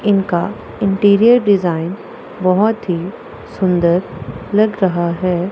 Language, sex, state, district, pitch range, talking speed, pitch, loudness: Hindi, female, Punjab, Pathankot, 175-205 Hz, 100 wpm, 185 Hz, -15 LUFS